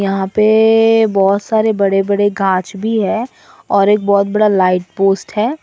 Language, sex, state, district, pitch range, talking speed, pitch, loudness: Hindi, female, Assam, Sonitpur, 195-220 Hz, 170 wpm, 205 Hz, -13 LUFS